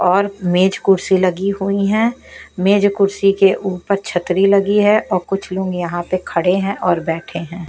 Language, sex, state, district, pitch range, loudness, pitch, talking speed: Hindi, female, Bihar, West Champaran, 180-200 Hz, -16 LUFS, 195 Hz, 180 wpm